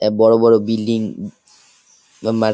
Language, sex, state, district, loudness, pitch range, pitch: Bengali, male, West Bengal, Jalpaiguri, -16 LUFS, 110-115 Hz, 110 Hz